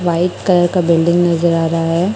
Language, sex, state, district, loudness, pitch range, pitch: Hindi, male, Chhattisgarh, Raipur, -14 LUFS, 165-175 Hz, 170 Hz